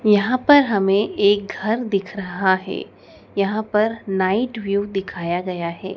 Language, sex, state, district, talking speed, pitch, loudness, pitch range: Hindi, female, Madhya Pradesh, Dhar, 150 wpm, 200 Hz, -20 LUFS, 190-215 Hz